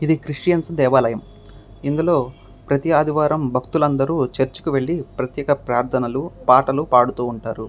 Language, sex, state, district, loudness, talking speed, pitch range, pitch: Telugu, male, Andhra Pradesh, Krishna, -19 LUFS, 100 wpm, 125-150 Hz, 135 Hz